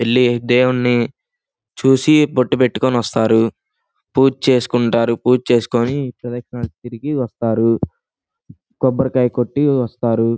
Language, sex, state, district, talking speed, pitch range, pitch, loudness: Telugu, male, Andhra Pradesh, Guntur, 90 wpm, 115-130 Hz, 125 Hz, -16 LUFS